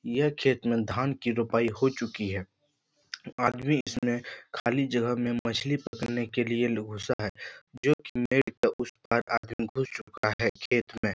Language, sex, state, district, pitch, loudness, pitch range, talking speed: Hindi, male, Bihar, Jahanabad, 120 Hz, -29 LUFS, 115-135 Hz, 170 wpm